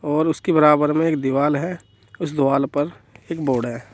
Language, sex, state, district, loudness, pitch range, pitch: Hindi, male, Uttar Pradesh, Saharanpur, -20 LUFS, 140-160 Hz, 150 Hz